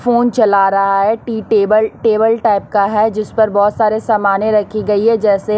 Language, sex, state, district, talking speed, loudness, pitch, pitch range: Hindi, female, Chhattisgarh, Raipur, 205 wpm, -13 LUFS, 215 Hz, 205-220 Hz